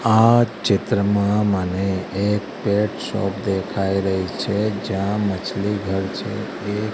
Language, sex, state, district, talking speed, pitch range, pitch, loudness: Gujarati, male, Gujarat, Gandhinagar, 120 wpm, 95-105 Hz, 100 Hz, -21 LUFS